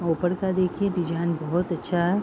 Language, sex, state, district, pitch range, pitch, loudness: Hindi, female, Uttar Pradesh, Hamirpur, 170-185 Hz, 175 Hz, -25 LUFS